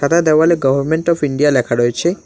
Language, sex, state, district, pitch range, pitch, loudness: Bengali, male, West Bengal, Alipurduar, 135-170 Hz, 150 Hz, -14 LUFS